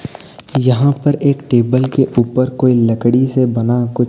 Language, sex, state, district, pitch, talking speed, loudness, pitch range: Hindi, male, Odisha, Nuapada, 130 Hz, 160 wpm, -14 LUFS, 120-135 Hz